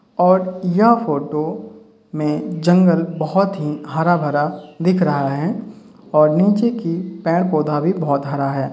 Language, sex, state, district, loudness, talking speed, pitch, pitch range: Hindi, male, Uttar Pradesh, Hamirpur, -18 LUFS, 145 wpm, 170 Hz, 150-190 Hz